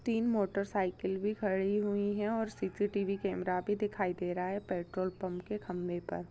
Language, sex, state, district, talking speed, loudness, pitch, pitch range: Hindi, female, Chhattisgarh, Bastar, 170 wpm, -35 LUFS, 195 Hz, 180-205 Hz